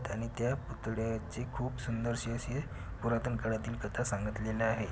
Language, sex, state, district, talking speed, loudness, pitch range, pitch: Marathi, male, Maharashtra, Pune, 135 wpm, -36 LUFS, 110-120 Hz, 115 Hz